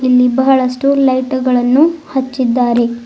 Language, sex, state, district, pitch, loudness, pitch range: Kannada, female, Karnataka, Bidar, 255 Hz, -13 LUFS, 250-265 Hz